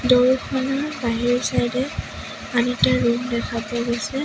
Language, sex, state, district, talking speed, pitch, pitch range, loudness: Assamese, female, Assam, Sonitpur, 155 wpm, 250 Hz, 235-260 Hz, -21 LUFS